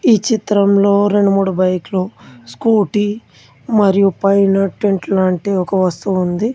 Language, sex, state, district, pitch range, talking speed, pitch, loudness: Telugu, male, Telangana, Komaram Bheem, 185-205 Hz, 120 wpm, 195 Hz, -15 LUFS